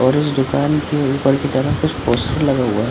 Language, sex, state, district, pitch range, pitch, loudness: Hindi, male, Bihar, Supaul, 130-145 Hz, 135 Hz, -17 LUFS